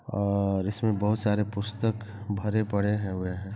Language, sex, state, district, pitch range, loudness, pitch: Hindi, male, Chhattisgarh, Bilaspur, 100-105 Hz, -28 LUFS, 105 Hz